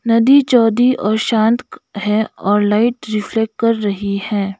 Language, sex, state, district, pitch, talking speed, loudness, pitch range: Hindi, female, Sikkim, Gangtok, 220 Hz, 130 wpm, -15 LUFS, 205-235 Hz